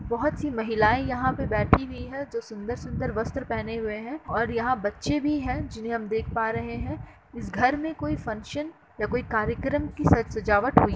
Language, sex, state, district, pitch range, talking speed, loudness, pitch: Hindi, female, Uttar Pradesh, Muzaffarnagar, 215-255 Hz, 210 wpm, -27 LUFS, 230 Hz